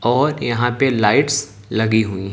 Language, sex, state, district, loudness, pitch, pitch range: Hindi, male, Haryana, Jhajjar, -17 LUFS, 120 Hz, 110-135 Hz